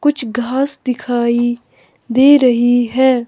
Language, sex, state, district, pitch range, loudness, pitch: Hindi, female, Himachal Pradesh, Shimla, 240-265 Hz, -14 LUFS, 245 Hz